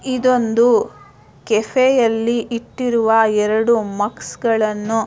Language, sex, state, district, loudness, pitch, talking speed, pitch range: Kannada, female, Karnataka, Dharwad, -17 LUFS, 230 Hz, 70 wpm, 220-240 Hz